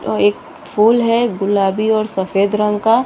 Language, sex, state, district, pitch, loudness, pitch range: Hindi, female, Bihar, Saharsa, 210 Hz, -15 LUFS, 200-225 Hz